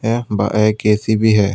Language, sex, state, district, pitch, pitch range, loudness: Hindi, male, Tripura, West Tripura, 105 Hz, 105-110 Hz, -16 LUFS